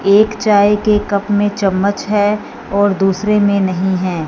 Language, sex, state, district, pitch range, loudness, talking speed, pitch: Hindi, female, Punjab, Fazilka, 195-210 Hz, -14 LUFS, 170 wpm, 205 Hz